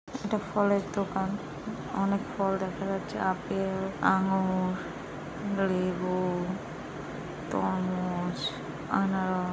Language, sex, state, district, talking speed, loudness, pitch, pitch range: Bengali, female, West Bengal, Kolkata, 75 wpm, -31 LUFS, 190 Hz, 185-195 Hz